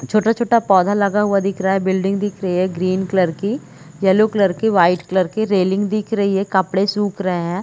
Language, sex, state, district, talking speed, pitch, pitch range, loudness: Hindi, female, Chhattisgarh, Bilaspur, 220 wpm, 195 Hz, 185-205 Hz, -17 LUFS